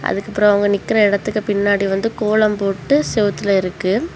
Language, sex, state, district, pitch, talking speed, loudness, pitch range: Tamil, female, Tamil Nadu, Kanyakumari, 205 Hz, 145 wpm, -17 LUFS, 200-215 Hz